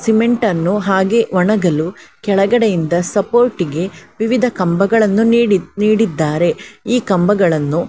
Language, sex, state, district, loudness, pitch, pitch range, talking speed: Kannada, female, Karnataka, Dakshina Kannada, -15 LUFS, 200 Hz, 175-225 Hz, 105 wpm